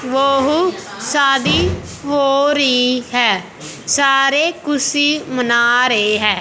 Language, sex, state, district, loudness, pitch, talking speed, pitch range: Hindi, female, Punjab, Fazilka, -15 LUFS, 275 Hz, 105 wpm, 245-290 Hz